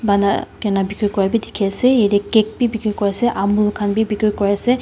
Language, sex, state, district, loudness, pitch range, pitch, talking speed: Nagamese, female, Nagaland, Dimapur, -18 LUFS, 200-220 Hz, 210 Hz, 235 wpm